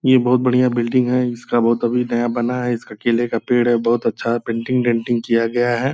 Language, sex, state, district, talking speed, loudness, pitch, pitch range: Hindi, male, Bihar, Purnia, 230 wpm, -18 LUFS, 120 Hz, 120-125 Hz